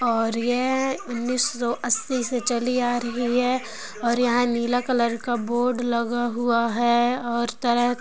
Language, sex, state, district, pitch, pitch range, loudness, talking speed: Hindi, male, Andhra Pradesh, Anantapur, 240 Hz, 235-245 Hz, -23 LUFS, 150 wpm